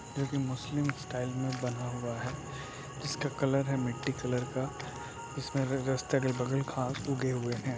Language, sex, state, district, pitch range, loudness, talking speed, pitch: Hindi, male, Uttar Pradesh, Etah, 125-140 Hz, -34 LUFS, 145 wpm, 135 Hz